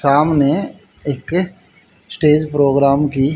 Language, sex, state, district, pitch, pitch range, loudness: Hindi, female, Haryana, Jhajjar, 145 Hz, 140-155 Hz, -16 LUFS